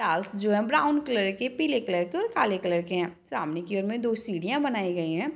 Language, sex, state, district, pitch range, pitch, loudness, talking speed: Hindi, female, Bihar, Madhepura, 175-255 Hz, 200 Hz, -27 LUFS, 255 wpm